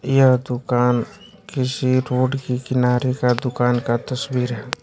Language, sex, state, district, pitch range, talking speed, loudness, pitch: Hindi, male, Bihar, West Champaran, 125-130 Hz, 135 wpm, -20 LUFS, 125 Hz